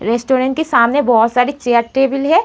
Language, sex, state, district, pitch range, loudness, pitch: Hindi, female, Uttar Pradesh, Muzaffarnagar, 235-270 Hz, -14 LUFS, 255 Hz